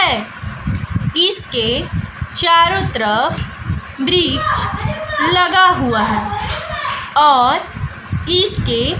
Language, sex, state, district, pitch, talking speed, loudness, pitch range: Hindi, female, Bihar, West Champaran, 360 Hz, 65 wpm, -15 LUFS, 335-370 Hz